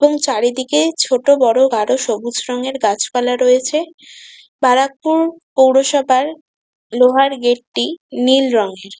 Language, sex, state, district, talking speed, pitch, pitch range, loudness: Bengali, female, West Bengal, Kolkata, 105 wpm, 260 Hz, 245-285 Hz, -15 LUFS